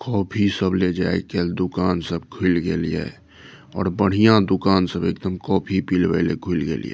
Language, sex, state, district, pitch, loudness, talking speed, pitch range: Maithili, male, Bihar, Saharsa, 95 Hz, -21 LUFS, 155 wpm, 90-95 Hz